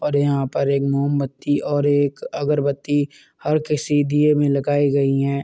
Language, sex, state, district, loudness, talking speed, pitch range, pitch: Hindi, male, Uttar Pradesh, Muzaffarnagar, -20 LUFS, 145 wpm, 140-145 Hz, 145 Hz